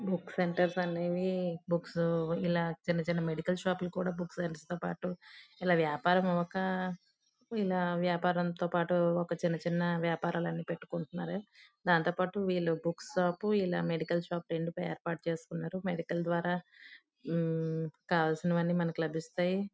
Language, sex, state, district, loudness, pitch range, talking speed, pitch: Telugu, female, Andhra Pradesh, Guntur, -33 LUFS, 170-180 Hz, 125 wpm, 175 Hz